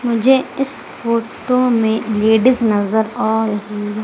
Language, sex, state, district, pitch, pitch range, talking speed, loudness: Hindi, female, Madhya Pradesh, Umaria, 225 Hz, 215-250 Hz, 120 wpm, -16 LUFS